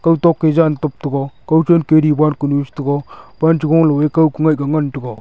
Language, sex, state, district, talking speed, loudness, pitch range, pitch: Wancho, male, Arunachal Pradesh, Longding, 205 wpm, -15 LUFS, 140-160 Hz, 155 Hz